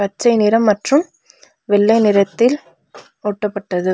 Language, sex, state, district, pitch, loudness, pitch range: Tamil, female, Tamil Nadu, Nilgiris, 210 Hz, -16 LUFS, 200-235 Hz